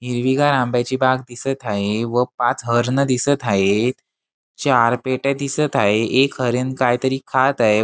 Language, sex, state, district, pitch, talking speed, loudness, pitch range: Marathi, male, Maharashtra, Sindhudurg, 130 Hz, 145 wpm, -19 LUFS, 120-135 Hz